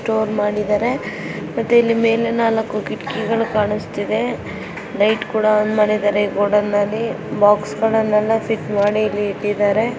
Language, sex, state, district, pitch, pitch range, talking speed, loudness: Kannada, female, Karnataka, Bijapur, 215 Hz, 205-225 Hz, 100 wpm, -18 LUFS